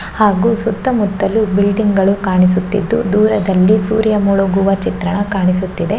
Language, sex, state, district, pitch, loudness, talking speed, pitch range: Kannada, female, Karnataka, Shimoga, 200 Hz, -14 LUFS, 100 wpm, 190-215 Hz